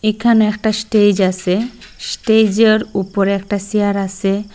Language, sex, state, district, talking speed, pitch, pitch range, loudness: Bengali, female, Assam, Hailakandi, 130 wpm, 205 Hz, 195-220 Hz, -15 LUFS